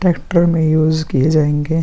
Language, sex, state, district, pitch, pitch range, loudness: Hindi, male, Bihar, Vaishali, 155 Hz, 155-170 Hz, -15 LUFS